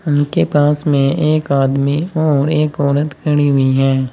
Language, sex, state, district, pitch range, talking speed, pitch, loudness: Hindi, male, Uttar Pradesh, Saharanpur, 140-155 Hz, 160 wpm, 145 Hz, -15 LUFS